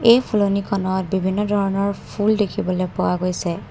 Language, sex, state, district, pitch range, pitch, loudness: Assamese, female, Assam, Kamrup Metropolitan, 185-205 Hz, 200 Hz, -20 LUFS